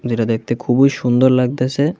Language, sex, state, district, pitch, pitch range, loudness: Bengali, male, Tripura, West Tripura, 125 Hz, 120-135 Hz, -16 LUFS